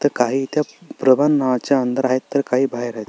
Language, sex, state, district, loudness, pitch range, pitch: Marathi, male, Maharashtra, Solapur, -19 LUFS, 125-140 Hz, 130 Hz